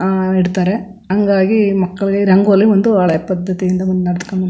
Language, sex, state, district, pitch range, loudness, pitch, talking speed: Kannada, female, Karnataka, Chamarajanagar, 185-200 Hz, -14 LUFS, 190 Hz, 135 wpm